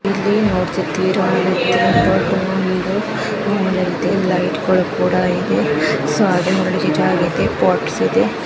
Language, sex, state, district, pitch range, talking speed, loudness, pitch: Kannada, male, Karnataka, Mysore, 185-200 Hz, 100 wpm, -17 LUFS, 190 Hz